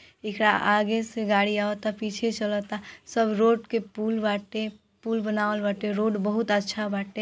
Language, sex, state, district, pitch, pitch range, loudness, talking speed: Bhojpuri, female, Bihar, East Champaran, 210 Hz, 210-220 Hz, -26 LUFS, 165 wpm